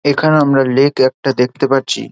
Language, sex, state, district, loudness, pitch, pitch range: Bengali, male, West Bengal, Dakshin Dinajpur, -13 LUFS, 135 Hz, 130-145 Hz